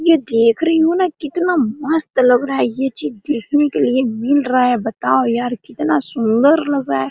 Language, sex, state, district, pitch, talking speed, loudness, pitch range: Hindi, female, Jharkhand, Sahebganj, 270 Hz, 210 wpm, -16 LUFS, 235-305 Hz